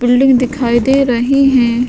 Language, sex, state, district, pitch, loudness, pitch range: Hindi, female, Goa, North and South Goa, 250 Hz, -12 LUFS, 245-270 Hz